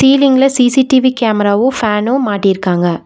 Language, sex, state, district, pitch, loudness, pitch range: Tamil, female, Tamil Nadu, Nilgiris, 245 Hz, -12 LUFS, 205-265 Hz